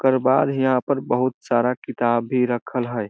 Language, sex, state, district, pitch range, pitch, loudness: Maithili, male, Bihar, Samastipur, 120-130 Hz, 125 Hz, -21 LUFS